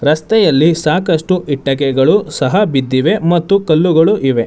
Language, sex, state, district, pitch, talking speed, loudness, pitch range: Kannada, male, Karnataka, Bangalore, 155 Hz, 105 wpm, -12 LUFS, 135-185 Hz